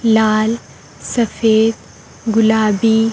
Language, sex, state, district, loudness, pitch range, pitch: Hindi, female, Chhattisgarh, Raipur, -15 LUFS, 220-225 Hz, 220 Hz